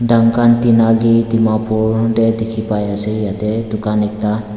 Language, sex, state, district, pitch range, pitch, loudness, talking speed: Nagamese, male, Nagaland, Dimapur, 105-115 Hz, 110 Hz, -15 LUFS, 120 wpm